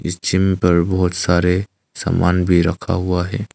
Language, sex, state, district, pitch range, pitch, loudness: Hindi, male, Arunachal Pradesh, Longding, 90-95 Hz, 90 Hz, -17 LUFS